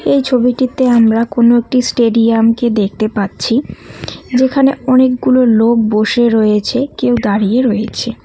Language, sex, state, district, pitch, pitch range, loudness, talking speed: Bengali, female, West Bengal, Cooch Behar, 235 Hz, 220-255 Hz, -12 LUFS, 115 wpm